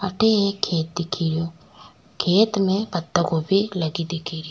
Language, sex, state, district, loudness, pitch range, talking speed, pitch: Rajasthani, female, Rajasthan, Nagaur, -22 LUFS, 165-195 Hz, 160 wpm, 175 Hz